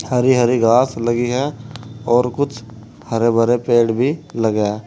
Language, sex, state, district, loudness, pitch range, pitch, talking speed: Hindi, male, Uttar Pradesh, Saharanpur, -17 LUFS, 115-125 Hz, 120 Hz, 150 wpm